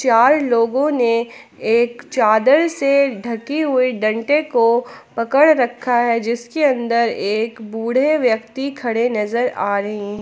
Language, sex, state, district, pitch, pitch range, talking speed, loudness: Hindi, female, Jharkhand, Palamu, 240 Hz, 230-275 Hz, 135 wpm, -17 LUFS